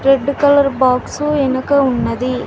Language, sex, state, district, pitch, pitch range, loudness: Telugu, female, Telangana, Mahabubabad, 275 Hz, 260-285 Hz, -15 LUFS